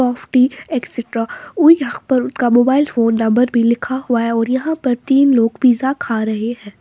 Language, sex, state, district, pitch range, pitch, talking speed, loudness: Hindi, female, Bihar, West Champaran, 230-265 Hz, 245 Hz, 195 wpm, -16 LUFS